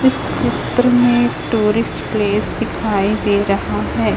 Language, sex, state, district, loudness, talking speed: Hindi, female, Chhattisgarh, Raipur, -17 LUFS, 130 wpm